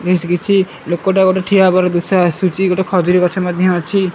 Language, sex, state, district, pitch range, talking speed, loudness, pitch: Odia, male, Odisha, Malkangiri, 180-190 Hz, 190 wpm, -14 LUFS, 185 Hz